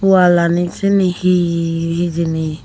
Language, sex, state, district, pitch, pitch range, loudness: Chakma, female, Tripura, Unakoti, 175 Hz, 165-180 Hz, -15 LUFS